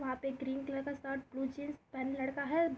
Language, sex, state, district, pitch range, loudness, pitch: Hindi, female, Uttar Pradesh, Jalaun, 265-280 Hz, -39 LUFS, 270 Hz